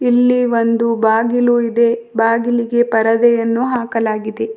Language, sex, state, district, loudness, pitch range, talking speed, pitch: Kannada, female, Karnataka, Bidar, -15 LUFS, 225-240 Hz, 90 wpm, 230 Hz